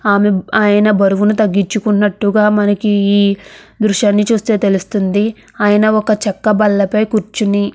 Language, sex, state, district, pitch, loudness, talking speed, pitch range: Telugu, female, Andhra Pradesh, Krishna, 205 Hz, -13 LUFS, 115 wpm, 200-215 Hz